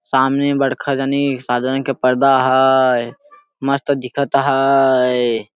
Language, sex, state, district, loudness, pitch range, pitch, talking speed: Sadri, male, Chhattisgarh, Jashpur, -16 LUFS, 130-140 Hz, 135 Hz, 130 wpm